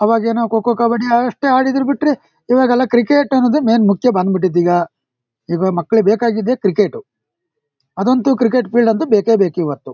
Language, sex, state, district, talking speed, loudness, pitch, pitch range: Kannada, male, Karnataka, Shimoga, 145 wpm, -15 LUFS, 230 Hz, 195-255 Hz